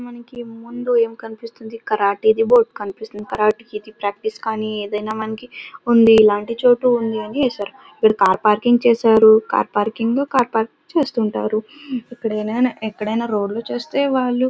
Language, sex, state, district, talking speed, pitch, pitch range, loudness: Telugu, female, Karnataka, Bellary, 150 wpm, 225 Hz, 215-245 Hz, -18 LUFS